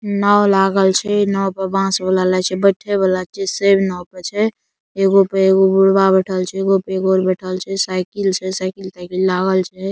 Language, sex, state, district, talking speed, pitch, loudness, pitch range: Maithili, male, Bihar, Saharsa, 180 wpm, 190 Hz, -16 LUFS, 185-195 Hz